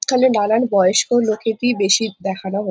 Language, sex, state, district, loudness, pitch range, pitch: Bengali, female, West Bengal, Jhargram, -17 LUFS, 195-235 Hz, 215 Hz